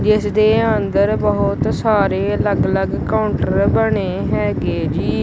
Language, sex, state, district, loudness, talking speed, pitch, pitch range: Punjabi, male, Punjab, Kapurthala, -17 LUFS, 115 wpm, 215 Hz, 205-215 Hz